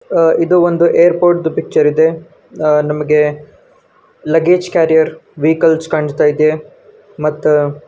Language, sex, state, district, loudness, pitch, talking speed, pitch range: Kannada, male, Karnataka, Gulbarga, -13 LUFS, 160 Hz, 105 wpm, 150-175 Hz